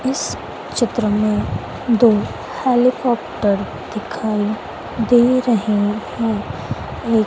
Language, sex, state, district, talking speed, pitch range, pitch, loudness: Hindi, female, Madhya Pradesh, Dhar, 80 wpm, 210-245 Hz, 225 Hz, -19 LUFS